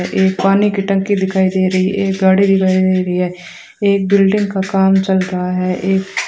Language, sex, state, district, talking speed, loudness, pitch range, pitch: Hindi, female, Rajasthan, Bikaner, 220 wpm, -14 LUFS, 185-195 Hz, 190 Hz